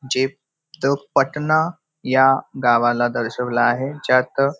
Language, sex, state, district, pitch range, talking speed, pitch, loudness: Marathi, male, Maharashtra, Nagpur, 125-145 Hz, 115 wpm, 135 Hz, -19 LUFS